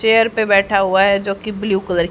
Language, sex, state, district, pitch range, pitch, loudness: Hindi, female, Haryana, Charkhi Dadri, 195-215 Hz, 200 Hz, -16 LUFS